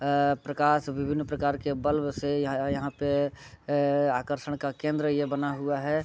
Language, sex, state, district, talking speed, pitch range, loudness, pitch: Hindi, male, Bihar, Sitamarhi, 160 wpm, 140-145 Hz, -28 LUFS, 145 Hz